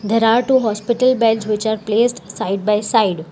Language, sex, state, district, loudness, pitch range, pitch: English, female, Telangana, Hyderabad, -17 LUFS, 210-235 Hz, 220 Hz